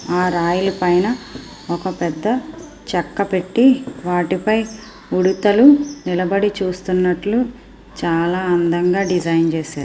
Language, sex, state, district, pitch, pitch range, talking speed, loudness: Telugu, female, Andhra Pradesh, Srikakulam, 185 Hz, 175-220 Hz, 90 wpm, -18 LUFS